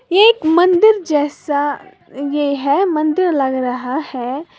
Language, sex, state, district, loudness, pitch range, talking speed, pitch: Hindi, female, Uttar Pradesh, Lalitpur, -16 LUFS, 280-355 Hz, 115 wpm, 295 Hz